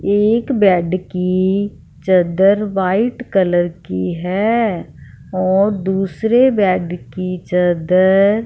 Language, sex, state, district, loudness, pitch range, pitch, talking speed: Hindi, female, Punjab, Fazilka, -16 LUFS, 180-205 Hz, 185 Hz, 100 wpm